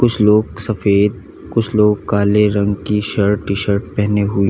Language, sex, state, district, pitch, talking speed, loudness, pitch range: Hindi, male, Uttar Pradesh, Lalitpur, 105 Hz, 185 wpm, -16 LUFS, 100-105 Hz